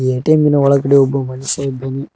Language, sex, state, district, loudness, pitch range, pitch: Kannada, male, Karnataka, Koppal, -14 LUFS, 130-140 Hz, 140 Hz